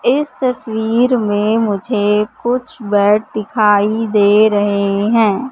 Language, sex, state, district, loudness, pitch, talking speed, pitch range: Hindi, female, Madhya Pradesh, Katni, -14 LUFS, 215 Hz, 110 wpm, 205-235 Hz